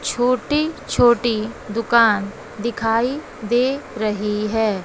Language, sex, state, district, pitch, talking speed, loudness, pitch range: Hindi, female, Bihar, West Champaran, 230 Hz, 85 wpm, -20 LUFS, 215-245 Hz